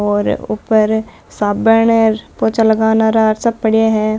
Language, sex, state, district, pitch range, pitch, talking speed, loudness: Marwari, female, Rajasthan, Nagaur, 215-225 Hz, 220 Hz, 130 wpm, -14 LUFS